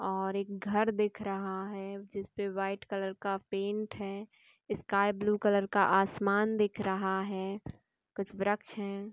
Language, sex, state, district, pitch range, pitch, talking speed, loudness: Marathi, female, Maharashtra, Sindhudurg, 195-205 Hz, 200 Hz, 150 wpm, -33 LUFS